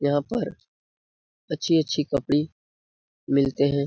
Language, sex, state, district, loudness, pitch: Hindi, male, Bihar, Jahanabad, -25 LUFS, 140 Hz